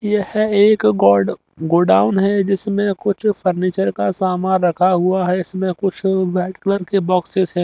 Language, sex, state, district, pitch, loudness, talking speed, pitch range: Hindi, male, Haryana, Jhajjar, 185 Hz, -17 LUFS, 155 wpm, 180-200 Hz